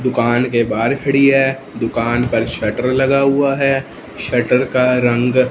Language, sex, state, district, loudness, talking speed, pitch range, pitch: Hindi, male, Punjab, Fazilka, -15 LUFS, 150 wpm, 120-135 Hz, 125 Hz